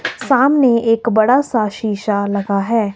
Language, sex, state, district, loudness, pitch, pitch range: Hindi, male, Himachal Pradesh, Shimla, -15 LUFS, 225 Hz, 205-250 Hz